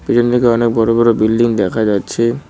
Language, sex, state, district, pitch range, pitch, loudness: Bengali, male, West Bengal, Cooch Behar, 110-120 Hz, 115 Hz, -14 LUFS